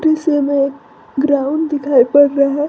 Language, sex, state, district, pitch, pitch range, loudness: Hindi, female, Jharkhand, Garhwa, 285 Hz, 280-295 Hz, -14 LUFS